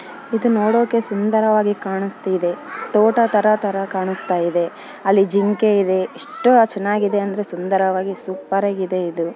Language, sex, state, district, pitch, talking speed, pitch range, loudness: Kannada, female, Karnataka, Bellary, 200 Hz, 115 wpm, 190-215 Hz, -18 LUFS